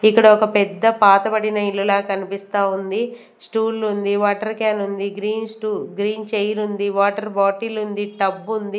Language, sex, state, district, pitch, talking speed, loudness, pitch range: Telugu, female, Andhra Pradesh, Manyam, 210 Hz, 150 wpm, -19 LUFS, 200-215 Hz